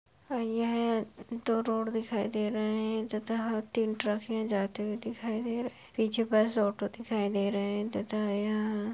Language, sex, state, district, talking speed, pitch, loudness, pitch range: Hindi, female, Bihar, Purnia, 180 wpm, 220 Hz, -32 LUFS, 210-230 Hz